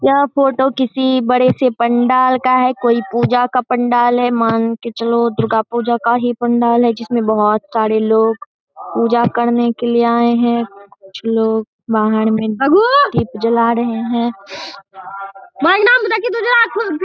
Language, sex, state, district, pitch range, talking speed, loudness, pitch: Hindi, female, Bihar, Saharsa, 225-255 Hz, 145 wpm, -14 LUFS, 235 Hz